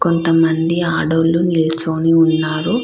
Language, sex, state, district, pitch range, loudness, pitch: Telugu, female, Andhra Pradesh, Krishna, 160-170 Hz, -15 LUFS, 165 Hz